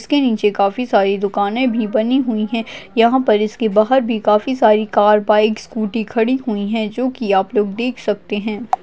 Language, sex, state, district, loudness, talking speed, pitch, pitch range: Hindi, female, Maharashtra, Chandrapur, -16 LUFS, 195 wpm, 220 Hz, 210-240 Hz